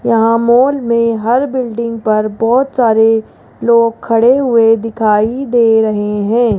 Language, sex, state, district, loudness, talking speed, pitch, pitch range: Hindi, female, Rajasthan, Jaipur, -12 LUFS, 135 wpm, 230 Hz, 225-240 Hz